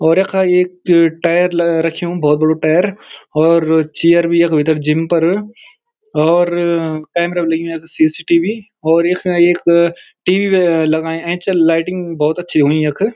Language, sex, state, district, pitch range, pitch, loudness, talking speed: Garhwali, male, Uttarakhand, Uttarkashi, 160-180 Hz, 170 Hz, -14 LUFS, 150 wpm